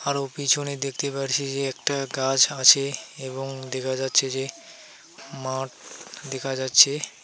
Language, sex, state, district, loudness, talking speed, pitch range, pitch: Bengali, male, West Bengal, Alipurduar, -23 LUFS, 125 wpm, 130-140 Hz, 135 Hz